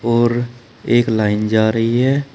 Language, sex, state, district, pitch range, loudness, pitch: Hindi, male, Uttar Pradesh, Saharanpur, 110-120 Hz, -16 LUFS, 120 Hz